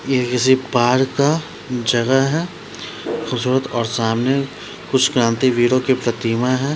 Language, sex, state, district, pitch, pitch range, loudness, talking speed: Hindi, male, Bihar, Patna, 130 Hz, 120-135 Hz, -18 LUFS, 140 wpm